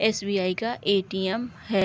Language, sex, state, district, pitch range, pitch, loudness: Hindi, female, Bihar, East Champaran, 190-220 Hz, 200 Hz, -26 LUFS